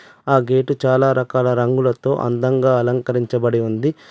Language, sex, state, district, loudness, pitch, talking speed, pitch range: Telugu, male, Telangana, Adilabad, -18 LUFS, 130 Hz, 115 wpm, 120-130 Hz